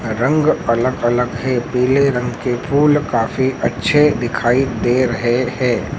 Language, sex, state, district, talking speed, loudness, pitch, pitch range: Hindi, male, Madhya Pradesh, Dhar, 140 wpm, -16 LUFS, 125 Hz, 120-135 Hz